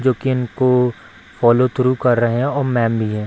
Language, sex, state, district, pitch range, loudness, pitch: Hindi, female, Bihar, Samastipur, 120-130 Hz, -17 LUFS, 125 Hz